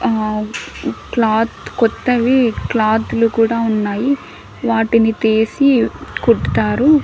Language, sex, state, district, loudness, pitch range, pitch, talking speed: Telugu, female, Andhra Pradesh, Annamaya, -16 LUFS, 220-240 Hz, 230 Hz, 85 wpm